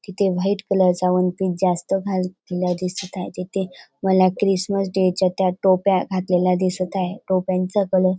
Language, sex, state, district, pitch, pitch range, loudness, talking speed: Marathi, female, Maharashtra, Dhule, 185 Hz, 180-195 Hz, -21 LUFS, 155 wpm